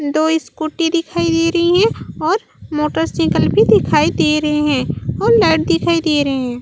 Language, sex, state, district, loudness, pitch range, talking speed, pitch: Chhattisgarhi, female, Chhattisgarh, Raigarh, -15 LUFS, 275-335 Hz, 170 wpm, 310 Hz